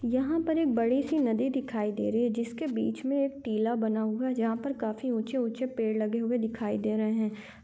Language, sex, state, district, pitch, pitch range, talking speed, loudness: Hindi, female, Chhattisgarh, Korba, 235 Hz, 220-265 Hz, 220 wpm, -30 LUFS